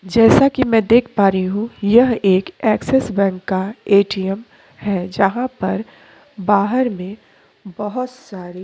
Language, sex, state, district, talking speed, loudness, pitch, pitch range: Hindi, female, Chhattisgarh, Korba, 140 wpm, -17 LUFS, 205 Hz, 190-240 Hz